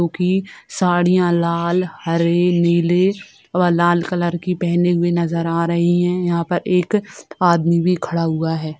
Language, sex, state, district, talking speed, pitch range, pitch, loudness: Hindi, female, Bihar, Sitamarhi, 165 wpm, 170-180 Hz, 175 Hz, -18 LUFS